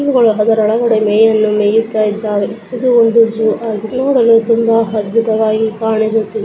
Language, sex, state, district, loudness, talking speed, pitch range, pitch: Kannada, female, Karnataka, Bellary, -13 LUFS, 120 wpm, 215-230 Hz, 220 Hz